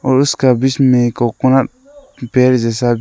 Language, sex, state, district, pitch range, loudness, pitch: Hindi, male, Arunachal Pradesh, Lower Dibang Valley, 120-135 Hz, -13 LUFS, 130 Hz